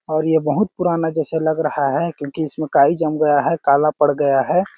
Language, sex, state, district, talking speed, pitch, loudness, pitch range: Hindi, male, Chhattisgarh, Balrampur, 250 wpm, 155 Hz, -18 LUFS, 145-165 Hz